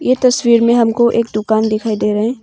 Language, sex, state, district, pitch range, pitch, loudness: Hindi, female, Arunachal Pradesh, Papum Pare, 220-240 Hz, 230 Hz, -14 LUFS